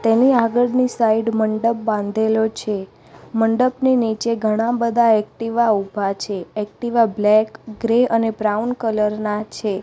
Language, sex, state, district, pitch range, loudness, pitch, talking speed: Gujarati, female, Gujarat, Gandhinagar, 215-235 Hz, -19 LUFS, 225 Hz, 130 wpm